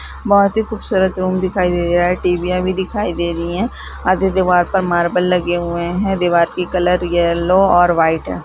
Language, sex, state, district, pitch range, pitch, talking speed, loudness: Hindi, female, Chhattisgarh, Korba, 175-190 Hz, 180 Hz, 190 wpm, -16 LUFS